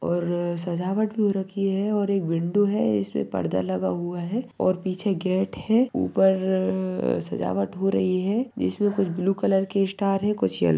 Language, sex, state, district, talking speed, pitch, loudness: Hindi, male, Bihar, Lakhisarai, 190 wpm, 185 Hz, -24 LUFS